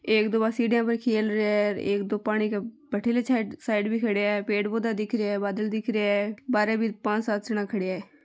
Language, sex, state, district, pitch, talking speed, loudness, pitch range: Marwari, female, Rajasthan, Nagaur, 215 Hz, 245 wpm, -26 LUFS, 205-230 Hz